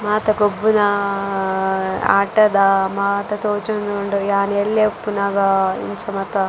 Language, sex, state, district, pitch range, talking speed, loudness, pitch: Tulu, female, Karnataka, Dakshina Kannada, 195-210 Hz, 90 wpm, -18 LUFS, 200 Hz